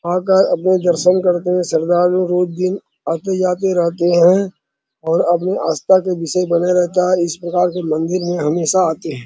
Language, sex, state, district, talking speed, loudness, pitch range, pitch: Hindi, male, Chhattisgarh, Bastar, 180 wpm, -16 LUFS, 170-185 Hz, 180 Hz